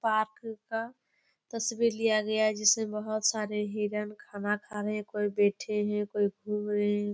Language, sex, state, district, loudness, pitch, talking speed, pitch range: Hindi, female, Chhattisgarh, Bastar, -30 LUFS, 210 Hz, 175 wpm, 210-220 Hz